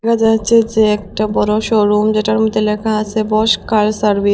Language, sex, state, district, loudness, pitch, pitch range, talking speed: Bengali, female, Assam, Hailakandi, -14 LUFS, 215 Hz, 210-220 Hz, 180 wpm